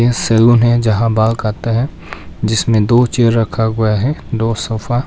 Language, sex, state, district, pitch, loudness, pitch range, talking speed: Hindi, male, Arunachal Pradesh, Papum Pare, 115 Hz, -14 LUFS, 110-120 Hz, 175 wpm